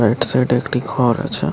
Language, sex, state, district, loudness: Bengali, male, West Bengal, Paschim Medinipur, -17 LUFS